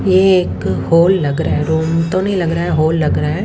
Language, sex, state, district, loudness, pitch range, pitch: Hindi, female, Haryana, Rohtak, -14 LUFS, 155-185 Hz, 165 Hz